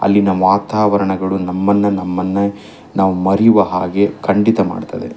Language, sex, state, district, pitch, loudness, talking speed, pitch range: Kannada, male, Karnataka, Chamarajanagar, 100 Hz, -15 LUFS, 105 wpm, 95-100 Hz